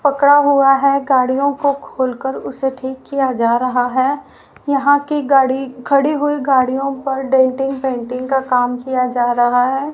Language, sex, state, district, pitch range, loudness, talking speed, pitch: Hindi, female, Haryana, Rohtak, 255-280 Hz, -16 LUFS, 170 wpm, 265 Hz